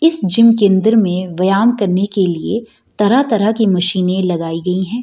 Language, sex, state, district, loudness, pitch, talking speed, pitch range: Hindi, female, Bihar, Gaya, -14 LUFS, 200 Hz, 180 wpm, 185-225 Hz